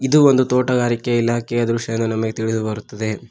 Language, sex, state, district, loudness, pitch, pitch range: Kannada, male, Karnataka, Koppal, -19 LUFS, 115 Hz, 110-125 Hz